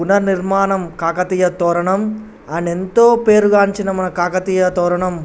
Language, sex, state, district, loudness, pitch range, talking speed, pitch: Telugu, male, Telangana, Nalgonda, -15 LUFS, 175-200 Hz, 115 wpm, 185 Hz